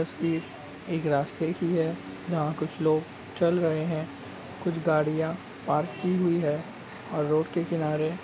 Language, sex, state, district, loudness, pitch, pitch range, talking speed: Hindi, male, Uttarakhand, Uttarkashi, -28 LUFS, 160 Hz, 155-170 Hz, 160 wpm